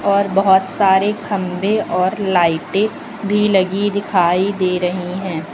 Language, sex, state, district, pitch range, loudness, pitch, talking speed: Hindi, female, Uttar Pradesh, Lucknow, 180-205 Hz, -17 LUFS, 190 Hz, 130 wpm